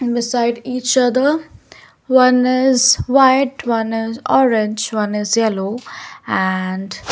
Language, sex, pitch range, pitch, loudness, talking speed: English, female, 215-255 Hz, 240 Hz, -16 LUFS, 120 wpm